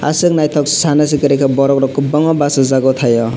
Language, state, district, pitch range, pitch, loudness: Kokborok, Tripura, West Tripura, 135-150 Hz, 140 Hz, -13 LUFS